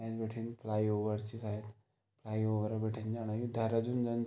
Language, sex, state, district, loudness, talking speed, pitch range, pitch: Garhwali, male, Uttarakhand, Tehri Garhwal, -37 LUFS, 155 wpm, 105-115 Hz, 110 Hz